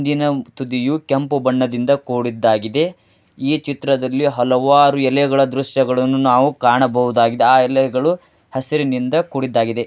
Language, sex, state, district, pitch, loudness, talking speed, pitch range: Kannada, male, Karnataka, Dharwad, 135 Hz, -17 LUFS, 105 wpm, 125-140 Hz